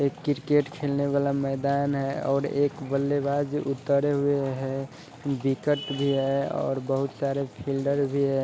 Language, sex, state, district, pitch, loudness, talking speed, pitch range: Hindi, male, Bihar, Sitamarhi, 140 Hz, -26 LUFS, 150 wpm, 135-145 Hz